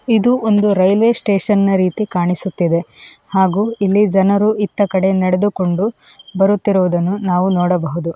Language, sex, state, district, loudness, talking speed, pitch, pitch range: Kannada, female, Karnataka, Dakshina Kannada, -15 LUFS, 120 wpm, 195 Hz, 180-205 Hz